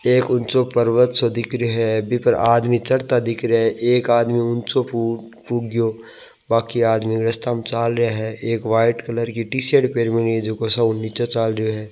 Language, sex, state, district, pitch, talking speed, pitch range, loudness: Hindi, male, Rajasthan, Nagaur, 115 Hz, 195 wpm, 115-120 Hz, -18 LUFS